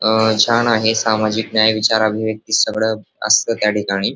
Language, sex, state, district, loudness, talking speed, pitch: Marathi, male, Maharashtra, Dhule, -16 LUFS, 145 wpm, 110 Hz